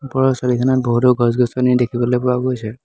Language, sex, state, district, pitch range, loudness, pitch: Assamese, male, Assam, Hailakandi, 120-130 Hz, -16 LUFS, 125 Hz